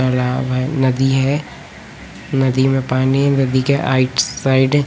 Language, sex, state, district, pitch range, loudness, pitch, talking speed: Hindi, male, Chhattisgarh, Raipur, 130-135 Hz, -16 LUFS, 130 Hz, 160 wpm